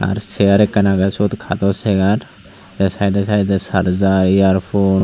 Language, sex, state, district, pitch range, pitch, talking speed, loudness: Chakma, male, Tripura, Unakoti, 95-100 Hz, 100 Hz, 155 wpm, -16 LUFS